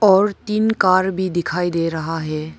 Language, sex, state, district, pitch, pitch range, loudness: Hindi, female, Arunachal Pradesh, Papum Pare, 180 Hz, 165-200 Hz, -19 LUFS